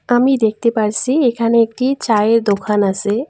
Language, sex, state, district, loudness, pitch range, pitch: Bengali, female, West Bengal, Cooch Behar, -15 LUFS, 210-245 Hz, 230 Hz